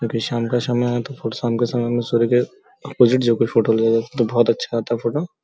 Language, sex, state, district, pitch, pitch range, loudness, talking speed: Hindi, male, Uttar Pradesh, Gorakhpur, 120 Hz, 115-120 Hz, -19 LUFS, 275 wpm